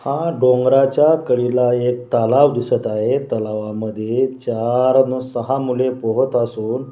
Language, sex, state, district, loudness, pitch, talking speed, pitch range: Marathi, male, Maharashtra, Washim, -17 LUFS, 125 Hz, 115 wpm, 120-130 Hz